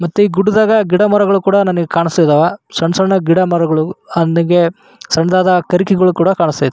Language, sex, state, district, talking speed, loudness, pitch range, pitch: Kannada, male, Karnataka, Raichur, 140 wpm, -13 LUFS, 170-195 Hz, 180 Hz